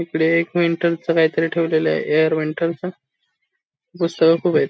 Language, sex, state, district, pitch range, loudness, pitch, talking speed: Marathi, male, Maharashtra, Sindhudurg, 160-170 Hz, -19 LUFS, 165 Hz, 155 wpm